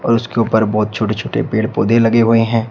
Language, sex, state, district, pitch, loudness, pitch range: Hindi, male, Uttar Pradesh, Shamli, 115 Hz, -15 LUFS, 110-115 Hz